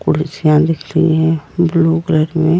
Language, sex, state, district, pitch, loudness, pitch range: Hindi, female, Goa, North and South Goa, 160 Hz, -14 LUFS, 155-165 Hz